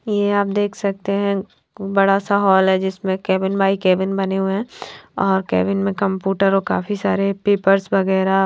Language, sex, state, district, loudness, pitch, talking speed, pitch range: Hindi, female, Punjab, Fazilka, -18 LUFS, 195 Hz, 185 wpm, 190-200 Hz